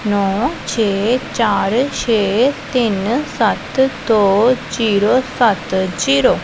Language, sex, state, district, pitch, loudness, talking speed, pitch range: Punjabi, female, Punjab, Pathankot, 225 Hz, -16 LUFS, 100 wpm, 200-250 Hz